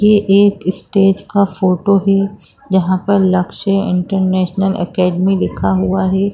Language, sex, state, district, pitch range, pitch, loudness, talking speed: Hindi, female, Bihar, Jamui, 185-195 Hz, 190 Hz, -14 LUFS, 130 wpm